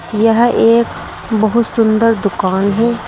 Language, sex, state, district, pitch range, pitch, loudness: Hindi, female, Uttar Pradesh, Saharanpur, 210-230 Hz, 225 Hz, -13 LUFS